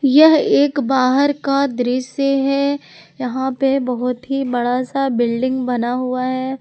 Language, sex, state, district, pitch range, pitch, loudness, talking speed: Hindi, female, Jharkhand, Ranchi, 250-275 Hz, 260 Hz, -17 LUFS, 145 wpm